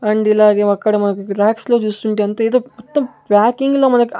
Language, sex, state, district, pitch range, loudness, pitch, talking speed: Telugu, male, Andhra Pradesh, Sri Satya Sai, 210-240 Hz, -15 LUFS, 215 Hz, 200 wpm